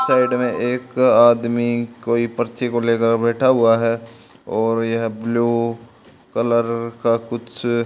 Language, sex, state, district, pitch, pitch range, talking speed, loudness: Hindi, male, Haryana, Charkhi Dadri, 115 Hz, 115-120 Hz, 130 wpm, -19 LUFS